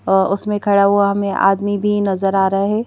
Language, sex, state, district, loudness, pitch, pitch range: Hindi, female, Madhya Pradesh, Bhopal, -16 LUFS, 200 Hz, 195-205 Hz